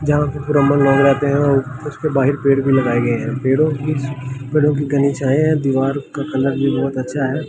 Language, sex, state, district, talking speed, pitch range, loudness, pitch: Hindi, male, Delhi, New Delhi, 210 wpm, 135-145 Hz, -17 LUFS, 140 Hz